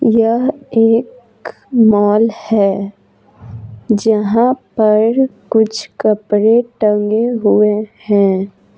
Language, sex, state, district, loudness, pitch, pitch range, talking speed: Hindi, female, Bihar, Patna, -14 LUFS, 215 Hz, 205-230 Hz, 75 wpm